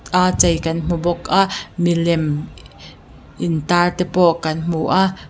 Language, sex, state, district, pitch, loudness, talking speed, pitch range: Mizo, female, Mizoram, Aizawl, 170 Hz, -18 LUFS, 160 wpm, 160-180 Hz